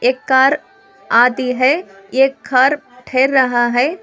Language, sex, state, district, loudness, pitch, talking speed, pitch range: Hindi, female, Telangana, Hyderabad, -15 LUFS, 260 Hz, 135 wpm, 250-275 Hz